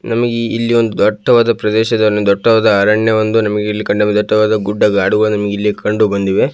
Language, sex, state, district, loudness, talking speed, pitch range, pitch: Kannada, male, Karnataka, Belgaum, -13 LUFS, 155 wpm, 105-115 Hz, 110 Hz